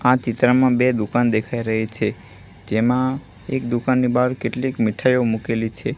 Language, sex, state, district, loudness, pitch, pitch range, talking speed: Gujarati, male, Gujarat, Gandhinagar, -20 LUFS, 120 Hz, 110-125 Hz, 150 wpm